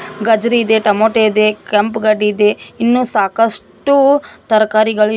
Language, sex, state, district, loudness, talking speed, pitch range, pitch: Kannada, female, Karnataka, Koppal, -13 LUFS, 125 wpm, 210-230 Hz, 220 Hz